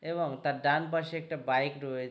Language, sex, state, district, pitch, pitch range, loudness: Bengali, male, West Bengal, Jalpaiguri, 145 Hz, 135-165 Hz, -31 LUFS